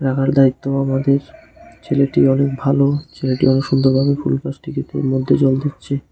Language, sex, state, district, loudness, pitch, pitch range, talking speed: Bengali, male, Tripura, West Tripura, -17 LUFS, 135 Hz, 135-140 Hz, 135 wpm